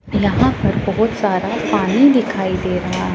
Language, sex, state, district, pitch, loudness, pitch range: Hindi, female, Punjab, Pathankot, 195 Hz, -16 LUFS, 185-230 Hz